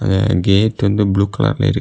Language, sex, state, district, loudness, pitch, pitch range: Tamil, male, Tamil Nadu, Kanyakumari, -15 LUFS, 100 Hz, 95-105 Hz